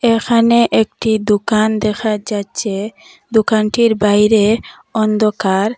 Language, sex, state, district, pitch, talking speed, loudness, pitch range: Bengali, female, Assam, Hailakandi, 215 Hz, 85 wpm, -15 LUFS, 210-225 Hz